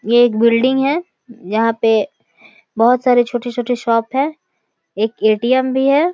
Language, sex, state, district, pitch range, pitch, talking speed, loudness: Maithili, female, Bihar, Samastipur, 230-265 Hz, 240 Hz, 145 wpm, -16 LUFS